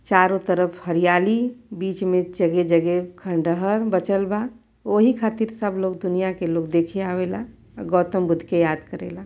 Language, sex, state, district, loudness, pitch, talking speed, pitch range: Bhojpuri, female, Uttar Pradesh, Varanasi, -22 LUFS, 185 Hz, 160 wpm, 175-200 Hz